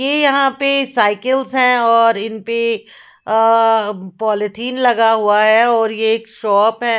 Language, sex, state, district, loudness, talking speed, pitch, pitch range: Hindi, female, Punjab, Fazilka, -14 LUFS, 155 wpm, 225 Hz, 220-250 Hz